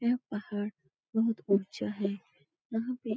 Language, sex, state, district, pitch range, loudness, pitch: Hindi, female, Uttar Pradesh, Etah, 200-230 Hz, -33 LUFS, 215 Hz